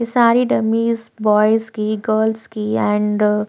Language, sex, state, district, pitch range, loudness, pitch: Hindi, female, Chhattisgarh, Korba, 210-225 Hz, -17 LUFS, 220 Hz